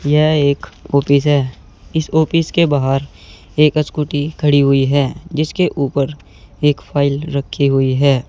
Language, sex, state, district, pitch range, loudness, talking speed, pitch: Hindi, male, Uttar Pradesh, Saharanpur, 140-150 Hz, -16 LUFS, 145 wpm, 145 Hz